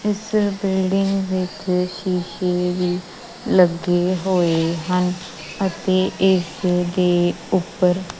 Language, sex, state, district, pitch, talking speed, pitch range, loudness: Punjabi, female, Punjab, Kapurthala, 180 Hz, 90 wpm, 175-190 Hz, -20 LUFS